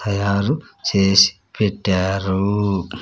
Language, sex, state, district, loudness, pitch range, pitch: Telugu, male, Andhra Pradesh, Sri Satya Sai, -18 LUFS, 95-105 Hz, 100 Hz